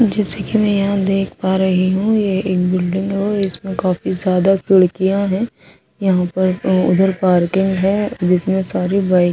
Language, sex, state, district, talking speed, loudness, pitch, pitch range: Hindi, female, Odisha, Sambalpur, 165 wpm, -16 LUFS, 190 Hz, 185-195 Hz